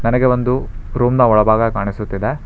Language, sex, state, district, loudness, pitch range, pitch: Kannada, male, Karnataka, Bangalore, -16 LUFS, 105-125 Hz, 115 Hz